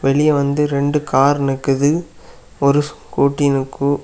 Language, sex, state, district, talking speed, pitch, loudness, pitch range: Tamil, male, Tamil Nadu, Kanyakumari, 120 wpm, 140 Hz, -17 LUFS, 140-145 Hz